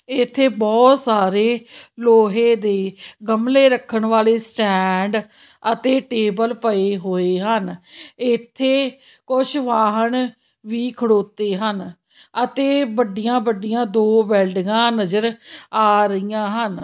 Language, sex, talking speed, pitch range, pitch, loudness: Punjabi, female, 100 wpm, 210-245 Hz, 225 Hz, -18 LUFS